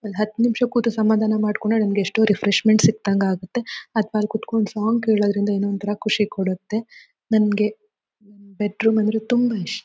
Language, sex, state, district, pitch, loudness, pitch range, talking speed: Kannada, female, Karnataka, Shimoga, 215 Hz, -21 LUFS, 205-220 Hz, 150 wpm